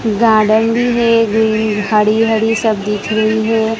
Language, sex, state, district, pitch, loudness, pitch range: Hindi, female, Gujarat, Gandhinagar, 220 Hz, -13 LUFS, 215-225 Hz